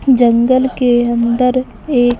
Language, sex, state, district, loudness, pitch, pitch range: Hindi, female, Maharashtra, Mumbai Suburban, -13 LUFS, 245 Hz, 240-255 Hz